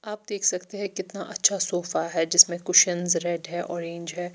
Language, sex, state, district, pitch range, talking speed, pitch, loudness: Hindi, female, Chandigarh, Chandigarh, 175-195 Hz, 195 wpm, 175 Hz, -23 LUFS